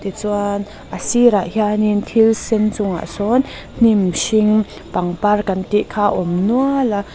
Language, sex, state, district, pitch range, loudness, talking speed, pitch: Mizo, female, Mizoram, Aizawl, 200-220 Hz, -17 LUFS, 160 wpm, 210 Hz